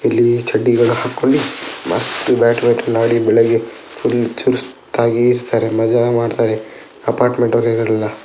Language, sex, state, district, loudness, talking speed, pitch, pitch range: Kannada, male, Karnataka, Dakshina Kannada, -16 LUFS, 100 wpm, 115 Hz, 115-120 Hz